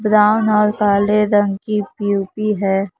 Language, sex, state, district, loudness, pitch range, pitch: Hindi, female, Maharashtra, Mumbai Suburban, -16 LUFS, 200-210 Hz, 210 Hz